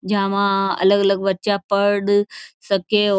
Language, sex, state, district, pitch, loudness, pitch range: Marwari, female, Rajasthan, Churu, 200 Hz, -18 LUFS, 195-205 Hz